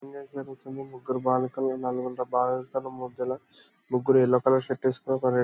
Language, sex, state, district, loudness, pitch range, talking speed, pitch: Telugu, male, Andhra Pradesh, Anantapur, -27 LUFS, 125-130 Hz, 130 wpm, 130 Hz